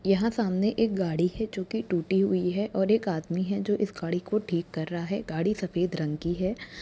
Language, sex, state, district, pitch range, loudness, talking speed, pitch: Hindi, male, Uttar Pradesh, Jyotiba Phule Nagar, 175-210 Hz, -28 LUFS, 230 wpm, 190 Hz